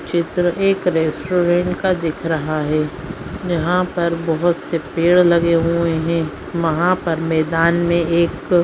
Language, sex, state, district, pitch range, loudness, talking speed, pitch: Hindi, male, West Bengal, Purulia, 165-175 Hz, -18 LUFS, 140 wpm, 170 Hz